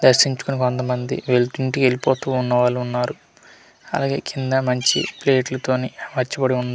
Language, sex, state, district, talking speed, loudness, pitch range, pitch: Telugu, male, Andhra Pradesh, Manyam, 140 wpm, -20 LUFS, 125-130 Hz, 130 Hz